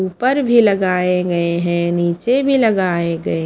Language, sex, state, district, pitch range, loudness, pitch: Hindi, female, Haryana, Charkhi Dadri, 170-230 Hz, -16 LUFS, 180 Hz